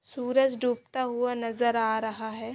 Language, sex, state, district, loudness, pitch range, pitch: Hindi, female, Chhattisgarh, Korba, -28 LUFS, 225-250 Hz, 240 Hz